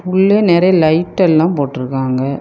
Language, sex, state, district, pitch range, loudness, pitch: Tamil, female, Tamil Nadu, Kanyakumari, 140-185 Hz, -13 LUFS, 165 Hz